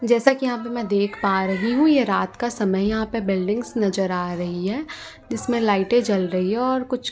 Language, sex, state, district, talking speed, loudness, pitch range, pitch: Hindi, female, Delhi, New Delhi, 225 wpm, -22 LUFS, 195-245 Hz, 220 Hz